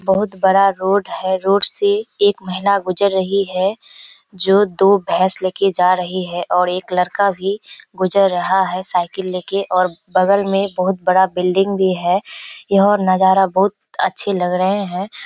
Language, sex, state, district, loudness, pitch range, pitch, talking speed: Hindi, female, Bihar, Kishanganj, -16 LUFS, 185-200 Hz, 190 Hz, 170 wpm